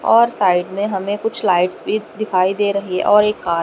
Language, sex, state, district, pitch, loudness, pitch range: Hindi, female, Haryana, Rohtak, 200 Hz, -17 LUFS, 185-215 Hz